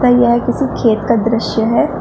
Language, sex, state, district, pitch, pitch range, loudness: Hindi, female, Uttar Pradesh, Shamli, 235 Hz, 225-245 Hz, -14 LUFS